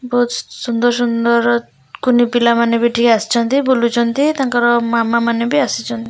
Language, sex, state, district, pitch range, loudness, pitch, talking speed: Odia, female, Odisha, Khordha, 235-245 Hz, -15 LUFS, 235 Hz, 130 wpm